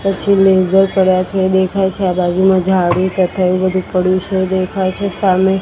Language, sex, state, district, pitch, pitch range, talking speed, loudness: Gujarati, female, Gujarat, Gandhinagar, 190 Hz, 185-190 Hz, 200 wpm, -14 LUFS